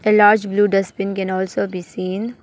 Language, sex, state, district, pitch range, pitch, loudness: English, female, Arunachal Pradesh, Papum Pare, 185-210 Hz, 195 Hz, -18 LUFS